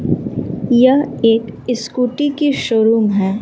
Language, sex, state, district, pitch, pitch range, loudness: Hindi, female, Bihar, West Champaran, 240 Hz, 225-265 Hz, -15 LUFS